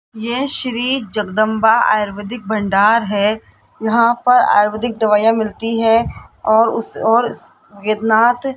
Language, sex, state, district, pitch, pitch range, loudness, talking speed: Hindi, female, Rajasthan, Jaipur, 225 Hz, 215-235 Hz, -15 LUFS, 120 wpm